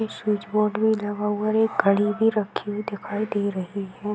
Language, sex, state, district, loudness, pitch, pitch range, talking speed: Hindi, female, Uttar Pradesh, Varanasi, -24 LUFS, 210 Hz, 205-215 Hz, 245 wpm